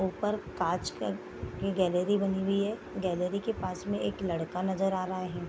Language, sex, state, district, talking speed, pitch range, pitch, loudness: Hindi, female, Bihar, Gopalganj, 185 wpm, 180-200 Hz, 190 Hz, -32 LUFS